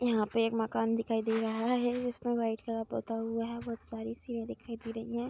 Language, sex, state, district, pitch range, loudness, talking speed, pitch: Hindi, female, Bihar, Saharsa, 225-235 Hz, -34 LUFS, 240 wpm, 230 Hz